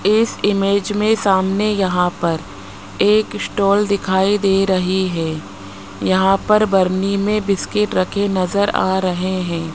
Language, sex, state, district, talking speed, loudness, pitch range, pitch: Hindi, male, Rajasthan, Jaipur, 135 wpm, -17 LUFS, 180-205 Hz, 190 Hz